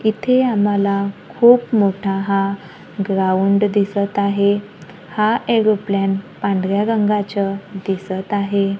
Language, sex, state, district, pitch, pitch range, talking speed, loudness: Marathi, female, Maharashtra, Gondia, 200 Hz, 195-210 Hz, 95 wpm, -18 LUFS